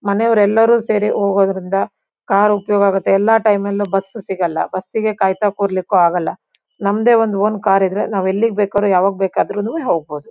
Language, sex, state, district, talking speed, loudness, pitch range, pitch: Kannada, female, Karnataka, Shimoga, 130 wpm, -16 LUFS, 195-210 Hz, 200 Hz